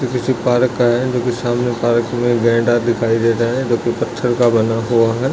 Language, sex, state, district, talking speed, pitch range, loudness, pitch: Hindi, male, Bihar, Jahanabad, 250 wpm, 115-125 Hz, -16 LUFS, 120 Hz